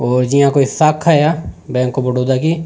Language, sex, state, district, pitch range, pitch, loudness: Rajasthani, male, Rajasthan, Nagaur, 125-155 Hz, 140 Hz, -14 LUFS